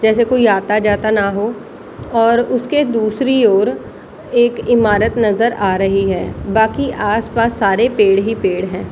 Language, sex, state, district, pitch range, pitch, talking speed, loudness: Hindi, female, Bihar, Jahanabad, 205-235 Hz, 220 Hz, 155 wpm, -15 LUFS